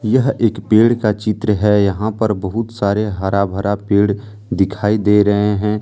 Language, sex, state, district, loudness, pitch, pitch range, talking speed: Hindi, male, Jharkhand, Deoghar, -16 LUFS, 105 Hz, 100-110 Hz, 175 wpm